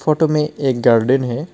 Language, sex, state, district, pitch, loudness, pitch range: Hindi, male, West Bengal, Alipurduar, 135 Hz, -16 LUFS, 125-155 Hz